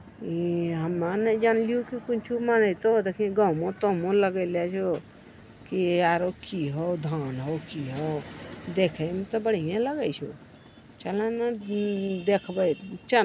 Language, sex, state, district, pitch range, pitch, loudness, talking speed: Magahi, female, Bihar, Jamui, 170-220 Hz, 190 Hz, -27 LUFS, 140 wpm